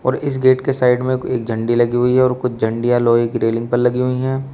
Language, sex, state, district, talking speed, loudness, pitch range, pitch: Hindi, male, Uttar Pradesh, Shamli, 280 wpm, -17 LUFS, 120-130 Hz, 125 Hz